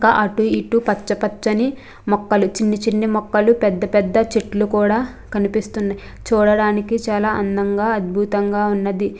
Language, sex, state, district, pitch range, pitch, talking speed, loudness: Telugu, female, Andhra Pradesh, Krishna, 205-220 Hz, 210 Hz, 120 wpm, -18 LUFS